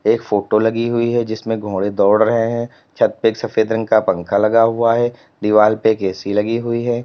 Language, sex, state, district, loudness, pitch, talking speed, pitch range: Hindi, male, Uttar Pradesh, Lalitpur, -17 LUFS, 110 Hz, 230 wpm, 105-115 Hz